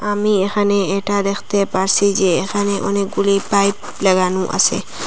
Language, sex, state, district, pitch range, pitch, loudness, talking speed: Bengali, female, Assam, Hailakandi, 195-205 Hz, 200 Hz, -17 LUFS, 130 wpm